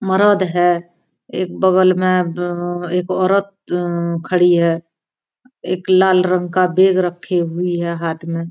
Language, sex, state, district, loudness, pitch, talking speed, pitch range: Maithili, female, Bihar, Araria, -17 LUFS, 180 Hz, 150 wpm, 175-185 Hz